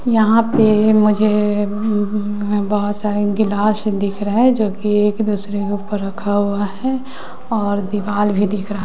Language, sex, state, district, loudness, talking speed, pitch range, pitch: Hindi, female, Bihar, West Champaran, -17 LUFS, 165 wpm, 205-215 Hz, 210 Hz